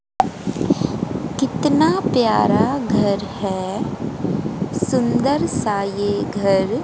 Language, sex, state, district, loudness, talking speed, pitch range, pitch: Hindi, female, Haryana, Jhajjar, -20 LUFS, 70 wpm, 195-215 Hz, 205 Hz